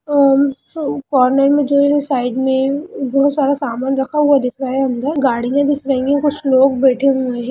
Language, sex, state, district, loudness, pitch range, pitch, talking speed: Hindi, male, Bihar, Darbhanga, -15 LUFS, 265-285 Hz, 275 Hz, 190 wpm